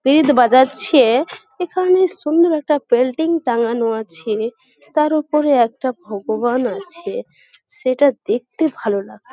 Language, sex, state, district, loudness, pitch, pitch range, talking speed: Bengali, female, West Bengal, Malda, -17 LUFS, 270 Hz, 235-320 Hz, 110 wpm